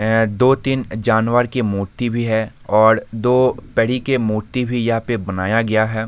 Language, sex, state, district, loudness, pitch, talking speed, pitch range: Hindi, male, Jharkhand, Sahebganj, -18 LUFS, 115 Hz, 175 wpm, 110-125 Hz